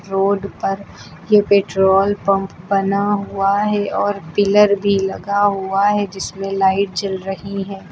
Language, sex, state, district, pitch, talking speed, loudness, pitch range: Hindi, female, Uttar Pradesh, Lucknow, 195 Hz, 145 wpm, -17 LUFS, 195-200 Hz